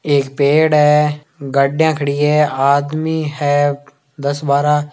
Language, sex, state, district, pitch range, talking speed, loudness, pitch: Hindi, male, Rajasthan, Nagaur, 140-150 Hz, 120 wpm, -15 LUFS, 145 Hz